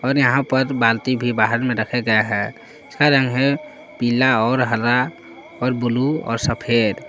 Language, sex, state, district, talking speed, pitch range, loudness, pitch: Hindi, male, Jharkhand, Palamu, 180 wpm, 115-135 Hz, -19 LUFS, 125 Hz